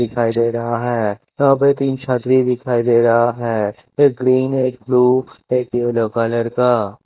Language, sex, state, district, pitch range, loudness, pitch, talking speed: Hindi, male, Punjab, Kapurthala, 115-130 Hz, -17 LUFS, 120 Hz, 180 wpm